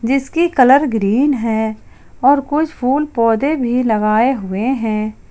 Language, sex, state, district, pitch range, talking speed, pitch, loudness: Hindi, female, Jharkhand, Ranchi, 220-280 Hz, 135 wpm, 250 Hz, -15 LUFS